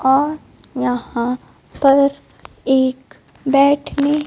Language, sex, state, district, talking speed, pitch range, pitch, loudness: Hindi, female, Bihar, Kaimur, 70 wpm, 260-285 Hz, 275 Hz, -17 LUFS